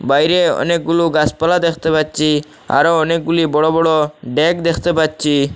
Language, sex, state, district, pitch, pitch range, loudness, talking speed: Bengali, male, Assam, Hailakandi, 160 Hz, 150-165 Hz, -15 LUFS, 130 wpm